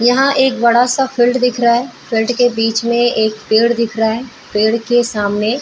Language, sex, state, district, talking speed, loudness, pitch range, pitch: Hindi, female, Bihar, Saran, 225 wpm, -14 LUFS, 225-245 Hz, 235 Hz